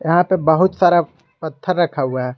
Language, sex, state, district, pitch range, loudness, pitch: Hindi, male, Jharkhand, Garhwa, 155-180 Hz, -16 LUFS, 170 Hz